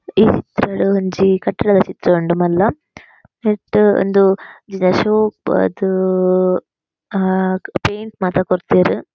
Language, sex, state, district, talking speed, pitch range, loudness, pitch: Tulu, female, Karnataka, Dakshina Kannada, 90 wpm, 185-205 Hz, -16 LUFS, 190 Hz